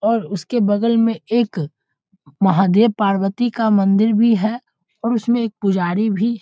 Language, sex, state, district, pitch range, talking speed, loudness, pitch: Hindi, male, Bihar, Muzaffarpur, 195-230 Hz, 150 wpm, -17 LUFS, 220 Hz